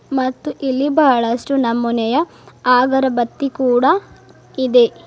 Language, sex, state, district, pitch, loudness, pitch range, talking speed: Kannada, female, Karnataka, Bidar, 260 Hz, -16 LUFS, 240-275 Hz, 85 wpm